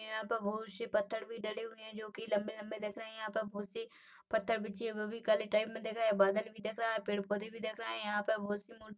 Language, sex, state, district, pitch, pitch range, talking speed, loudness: Hindi, female, Chhattisgarh, Rajnandgaon, 220 Hz, 210-225 Hz, 275 wpm, -37 LUFS